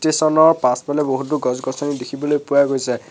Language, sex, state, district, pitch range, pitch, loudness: Assamese, male, Assam, Sonitpur, 130-155 Hz, 145 Hz, -18 LUFS